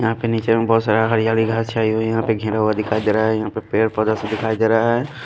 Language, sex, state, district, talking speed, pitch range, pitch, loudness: Hindi, male, Punjab, Pathankot, 310 wpm, 110-115 Hz, 110 Hz, -19 LUFS